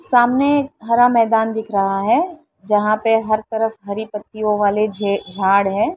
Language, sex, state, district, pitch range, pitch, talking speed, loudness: Hindi, female, Maharashtra, Mumbai Suburban, 205-240 Hz, 220 Hz, 160 wpm, -17 LUFS